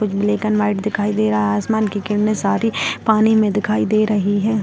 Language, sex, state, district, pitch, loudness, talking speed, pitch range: Hindi, female, Bihar, Darbhanga, 210 Hz, -18 LUFS, 235 wpm, 205-215 Hz